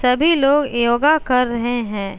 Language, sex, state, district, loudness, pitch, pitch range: Hindi, female, Uttar Pradesh, Jalaun, -17 LUFS, 250 Hz, 235-285 Hz